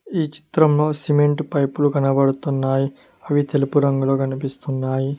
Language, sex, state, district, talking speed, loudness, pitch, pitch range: Telugu, male, Telangana, Mahabubabad, 105 wpm, -20 LUFS, 140 Hz, 135-145 Hz